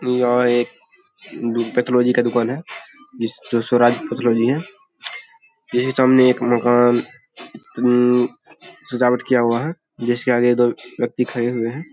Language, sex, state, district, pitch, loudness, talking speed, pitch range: Hindi, male, Bihar, Saharsa, 125 Hz, -18 LUFS, 130 wpm, 120-130 Hz